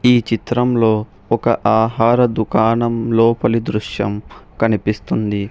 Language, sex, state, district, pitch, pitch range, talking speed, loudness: Telugu, male, Telangana, Hyderabad, 115 Hz, 105-115 Hz, 85 wpm, -17 LUFS